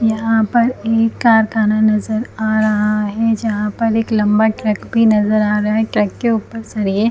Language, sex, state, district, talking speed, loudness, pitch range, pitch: Hindi, female, Chhattisgarh, Bilaspur, 200 wpm, -15 LUFS, 210-225 Hz, 220 Hz